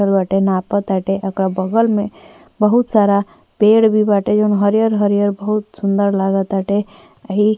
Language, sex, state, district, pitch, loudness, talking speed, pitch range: Bhojpuri, female, Uttar Pradesh, Ghazipur, 205 Hz, -16 LUFS, 165 wpm, 195-210 Hz